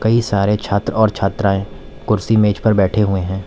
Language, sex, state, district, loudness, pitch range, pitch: Hindi, male, Uttar Pradesh, Lalitpur, -16 LUFS, 95-110 Hz, 105 Hz